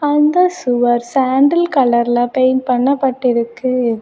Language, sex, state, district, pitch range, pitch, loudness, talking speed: Tamil, female, Tamil Nadu, Kanyakumari, 240-275 Hz, 255 Hz, -14 LUFS, 105 wpm